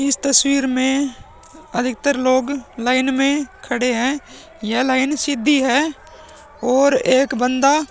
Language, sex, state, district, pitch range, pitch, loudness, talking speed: Hindi, male, Bihar, Vaishali, 255-285 Hz, 270 Hz, -18 LUFS, 130 wpm